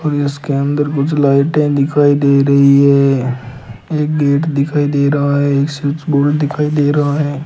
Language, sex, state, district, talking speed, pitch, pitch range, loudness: Hindi, male, Rajasthan, Bikaner, 175 wpm, 145 Hz, 140-145 Hz, -13 LUFS